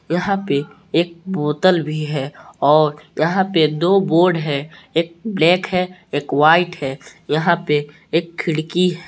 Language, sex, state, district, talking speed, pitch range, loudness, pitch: Hindi, male, Jharkhand, Palamu, 150 wpm, 150-180 Hz, -18 LUFS, 165 Hz